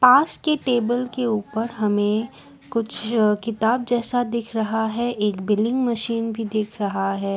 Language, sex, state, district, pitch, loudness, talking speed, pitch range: Hindi, female, Assam, Kamrup Metropolitan, 225 Hz, -22 LUFS, 155 wpm, 210-240 Hz